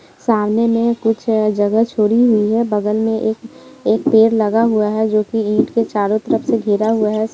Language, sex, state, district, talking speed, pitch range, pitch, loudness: Hindi, female, Bihar, Kishanganj, 205 wpm, 215-230 Hz, 220 Hz, -16 LUFS